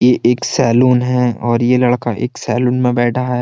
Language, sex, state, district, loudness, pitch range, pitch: Hindi, male, Uttar Pradesh, Jyotiba Phule Nagar, -14 LUFS, 120-125 Hz, 125 Hz